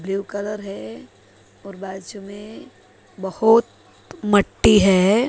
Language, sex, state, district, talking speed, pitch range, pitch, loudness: Hindi, female, Maharashtra, Mumbai Suburban, 100 wpm, 185-210 Hz, 195 Hz, -19 LUFS